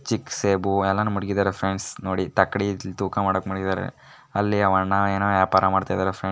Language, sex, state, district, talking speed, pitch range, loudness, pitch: Kannada, female, Karnataka, Mysore, 170 wpm, 95-100 Hz, -23 LUFS, 95 Hz